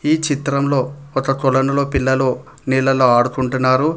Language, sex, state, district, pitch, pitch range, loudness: Telugu, male, Telangana, Hyderabad, 135 Hz, 130-140 Hz, -17 LUFS